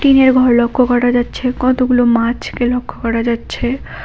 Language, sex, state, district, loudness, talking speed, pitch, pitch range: Bengali, female, West Bengal, Cooch Behar, -14 LUFS, 135 wpm, 245 Hz, 240-255 Hz